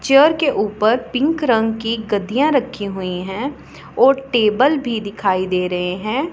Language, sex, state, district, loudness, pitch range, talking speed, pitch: Hindi, female, Punjab, Pathankot, -18 LUFS, 200-270 Hz, 160 wpm, 225 Hz